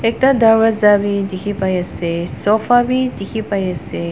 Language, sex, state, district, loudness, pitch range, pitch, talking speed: Nagamese, female, Nagaland, Dimapur, -16 LUFS, 185-225 Hz, 205 Hz, 100 wpm